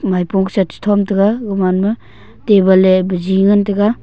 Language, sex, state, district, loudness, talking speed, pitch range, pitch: Wancho, male, Arunachal Pradesh, Longding, -14 LUFS, 180 wpm, 185-205 Hz, 195 Hz